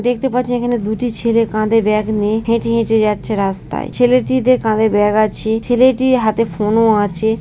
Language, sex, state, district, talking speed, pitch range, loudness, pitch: Bengali, female, West Bengal, Jhargram, 170 wpm, 215-245 Hz, -15 LUFS, 225 Hz